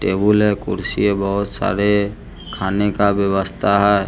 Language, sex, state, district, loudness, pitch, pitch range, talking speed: Hindi, male, Bihar, West Champaran, -18 LUFS, 100 Hz, 100-105 Hz, 145 wpm